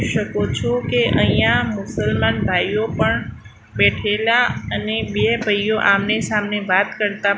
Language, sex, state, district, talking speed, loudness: Gujarati, female, Gujarat, Gandhinagar, 120 wpm, -18 LUFS